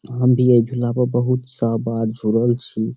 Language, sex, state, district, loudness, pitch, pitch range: Maithili, male, Bihar, Saharsa, -19 LUFS, 120 Hz, 115-125 Hz